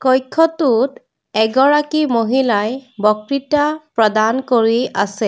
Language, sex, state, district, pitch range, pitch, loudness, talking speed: Assamese, female, Assam, Kamrup Metropolitan, 220-285 Hz, 255 Hz, -16 LUFS, 80 wpm